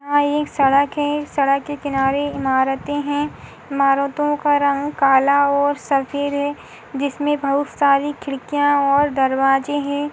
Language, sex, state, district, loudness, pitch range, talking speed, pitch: Hindi, female, Goa, North and South Goa, -19 LUFS, 275-290 Hz, 135 wpm, 285 Hz